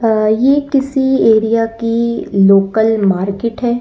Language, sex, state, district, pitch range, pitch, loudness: Hindi, female, Uttar Pradesh, Lalitpur, 215-240 Hz, 225 Hz, -13 LUFS